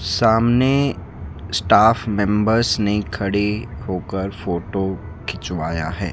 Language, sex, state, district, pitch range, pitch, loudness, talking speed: Hindi, male, Rajasthan, Jaipur, 95-110 Hz, 100 Hz, -20 LUFS, 90 wpm